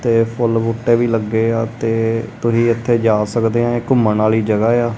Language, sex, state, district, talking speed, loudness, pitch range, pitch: Punjabi, male, Punjab, Kapurthala, 205 wpm, -16 LUFS, 115-120 Hz, 115 Hz